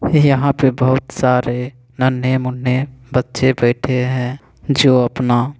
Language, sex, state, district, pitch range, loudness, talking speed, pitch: Hindi, male, Bihar, Begusarai, 125-135 Hz, -16 LUFS, 120 wpm, 130 Hz